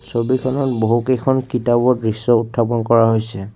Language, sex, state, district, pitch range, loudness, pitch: Assamese, male, Assam, Kamrup Metropolitan, 115-130 Hz, -17 LUFS, 120 Hz